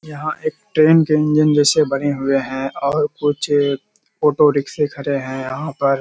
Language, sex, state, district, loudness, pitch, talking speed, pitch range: Hindi, male, Bihar, Kishanganj, -17 LUFS, 145 Hz, 170 wpm, 140-150 Hz